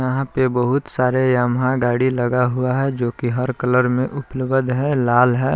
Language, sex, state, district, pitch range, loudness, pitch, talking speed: Hindi, male, Jharkhand, Palamu, 125-130 Hz, -19 LUFS, 125 Hz, 185 wpm